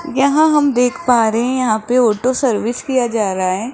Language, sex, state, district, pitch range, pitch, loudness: Hindi, female, Rajasthan, Jaipur, 225-265 Hz, 245 Hz, -15 LUFS